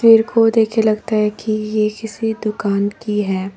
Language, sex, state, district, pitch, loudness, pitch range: Hindi, female, Nagaland, Dimapur, 215 Hz, -17 LUFS, 210-225 Hz